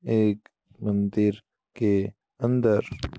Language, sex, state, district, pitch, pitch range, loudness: Hindi, male, Uttar Pradesh, Muzaffarnagar, 105 Hz, 100-110 Hz, -26 LUFS